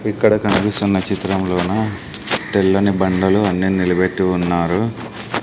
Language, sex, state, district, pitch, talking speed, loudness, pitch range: Telugu, male, Andhra Pradesh, Sri Satya Sai, 95 Hz, 90 wpm, -17 LUFS, 90-105 Hz